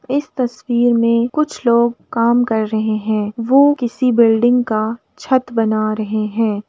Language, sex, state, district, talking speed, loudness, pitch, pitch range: Hindi, female, Uttar Pradesh, Jalaun, 150 wpm, -16 LUFS, 235 Hz, 220-245 Hz